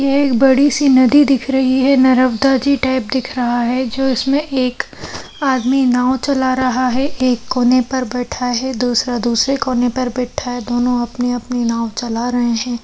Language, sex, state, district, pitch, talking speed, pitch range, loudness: Hindi, female, Bihar, Madhepura, 255 Hz, 185 wpm, 245-265 Hz, -15 LUFS